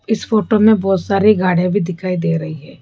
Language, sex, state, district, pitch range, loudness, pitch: Hindi, female, Rajasthan, Jaipur, 180-215 Hz, -15 LUFS, 195 Hz